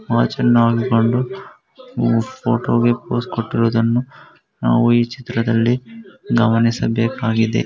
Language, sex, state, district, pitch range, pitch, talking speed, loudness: Kannada, male, Karnataka, Gulbarga, 115-125 Hz, 120 Hz, 85 wpm, -18 LUFS